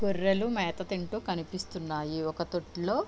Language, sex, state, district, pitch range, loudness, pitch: Telugu, female, Andhra Pradesh, Visakhapatnam, 170-200 Hz, -32 LUFS, 185 Hz